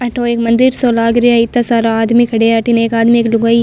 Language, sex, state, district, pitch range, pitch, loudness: Marwari, female, Rajasthan, Nagaur, 230-240 Hz, 235 Hz, -11 LUFS